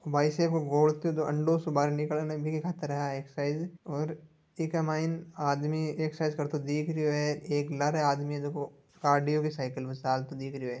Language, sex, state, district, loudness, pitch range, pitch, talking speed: Marwari, male, Rajasthan, Nagaur, -31 LUFS, 145-155 Hz, 150 Hz, 135 wpm